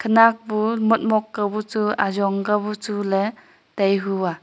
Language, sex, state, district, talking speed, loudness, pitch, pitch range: Wancho, female, Arunachal Pradesh, Longding, 135 wpm, -21 LUFS, 210 Hz, 195-220 Hz